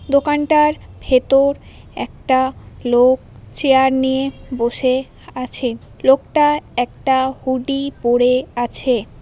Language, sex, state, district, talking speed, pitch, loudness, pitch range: Bengali, female, West Bengal, Paschim Medinipur, 85 wpm, 265 Hz, -17 LUFS, 250-275 Hz